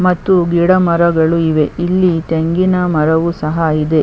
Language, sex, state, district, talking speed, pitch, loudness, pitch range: Kannada, female, Karnataka, Chamarajanagar, 150 wpm, 170 Hz, -13 LUFS, 160-180 Hz